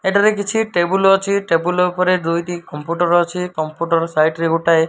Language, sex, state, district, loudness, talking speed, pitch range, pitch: Odia, male, Odisha, Malkangiri, -17 LUFS, 185 wpm, 165-190 Hz, 175 Hz